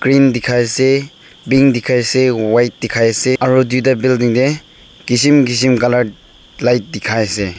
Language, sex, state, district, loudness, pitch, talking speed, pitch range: Nagamese, male, Nagaland, Dimapur, -14 LUFS, 125 Hz, 160 wpm, 120-130 Hz